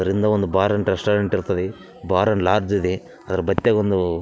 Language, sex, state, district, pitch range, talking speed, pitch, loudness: Kannada, male, Karnataka, Raichur, 95-105 Hz, 185 wpm, 95 Hz, -20 LUFS